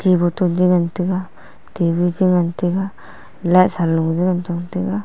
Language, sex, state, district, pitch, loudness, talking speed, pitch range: Wancho, female, Arunachal Pradesh, Longding, 180 Hz, -18 LUFS, 165 wpm, 175-185 Hz